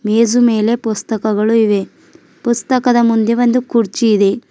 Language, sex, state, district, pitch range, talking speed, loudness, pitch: Kannada, female, Karnataka, Bidar, 215-240 Hz, 120 wpm, -14 LUFS, 230 Hz